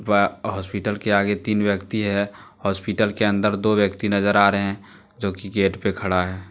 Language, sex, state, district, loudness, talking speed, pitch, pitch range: Hindi, male, Jharkhand, Deoghar, -22 LUFS, 195 wpm, 100 Hz, 100-105 Hz